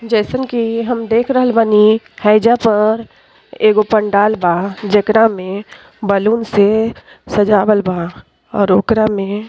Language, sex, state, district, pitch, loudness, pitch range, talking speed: Bhojpuri, female, Uttar Pradesh, Ghazipur, 215 Hz, -14 LUFS, 205-230 Hz, 135 wpm